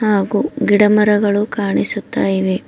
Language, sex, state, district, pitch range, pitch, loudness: Kannada, female, Karnataka, Bidar, 200-210 Hz, 205 Hz, -15 LUFS